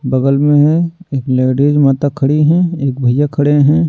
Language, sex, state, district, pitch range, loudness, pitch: Hindi, male, Delhi, New Delhi, 135-150 Hz, -13 LUFS, 145 Hz